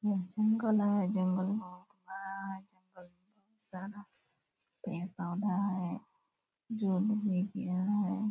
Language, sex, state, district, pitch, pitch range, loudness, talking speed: Hindi, female, Bihar, Purnia, 195 Hz, 185-205 Hz, -34 LUFS, 135 wpm